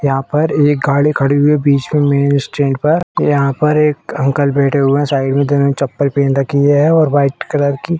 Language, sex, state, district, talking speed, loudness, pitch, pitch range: Hindi, female, Uttar Pradesh, Etah, 230 wpm, -13 LUFS, 140 Hz, 140-150 Hz